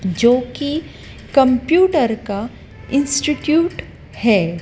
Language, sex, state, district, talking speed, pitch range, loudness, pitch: Hindi, female, Madhya Pradesh, Dhar, 80 wpm, 220-300 Hz, -17 LUFS, 260 Hz